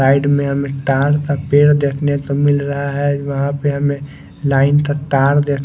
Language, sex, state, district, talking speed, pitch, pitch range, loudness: Hindi, male, Chandigarh, Chandigarh, 190 wpm, 140 Hz, 140-145 Hz, -16 LUFS